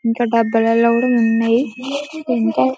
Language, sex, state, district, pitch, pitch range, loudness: Telugu, female, Telangana, Karimnagar, 235 Hz, 225-245 Hz, -17 LUFS